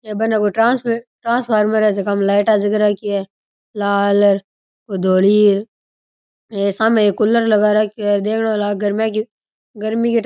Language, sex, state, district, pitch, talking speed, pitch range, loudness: Rajasthani, male, Rajasthan, Churu, 210 Hz, 170 wpm, 200-220 Hz, -16 LUFS